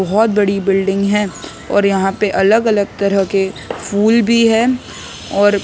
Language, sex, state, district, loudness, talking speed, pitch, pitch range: Hindi, male, Maharashtra, Mumbai Suburban, -14 LUFS, 160 wpm, 205 Hz, 195-220 Hz